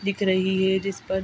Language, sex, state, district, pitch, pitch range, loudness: Hindi, female, Bihar, Araria, 190 Hz, 190-195 Hz, -23 LUFS